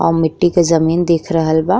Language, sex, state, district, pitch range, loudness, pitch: Bhojpuri, female, Uttar Pradesh, Ghazipur, 160-175 Hz, -14 LUFS, 165 Hz